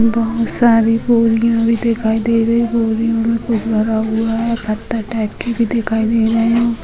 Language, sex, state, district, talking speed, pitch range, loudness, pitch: Hindi, female, Bihar, Gopalganj, 185 wpm, 225-230 Hz, -15 LUFS, 230 Hz